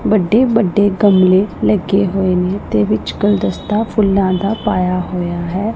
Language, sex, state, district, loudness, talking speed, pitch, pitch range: Punjabi, female, Punjab, Pathankot, -15 LUFS, 135 wpm, 190 Hz, 180-210 Hz